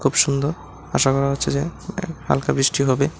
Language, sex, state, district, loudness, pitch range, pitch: Bengali, male, Tripura, West Tripura, -21 LUFS, 135-155 Hz, 140 Hz